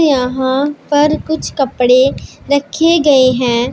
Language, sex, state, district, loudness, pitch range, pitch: Hindi, female, Punjab, Pathankot, -13 LUFS, 255-295 Hz, 275 Hz